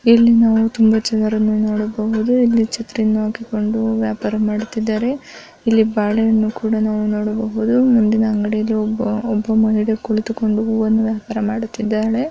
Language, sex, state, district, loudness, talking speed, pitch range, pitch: Kannada, female, Karnataka, Dharwad, -17 LUFS, 120 wpm, 215-225 Hz, 220 Hz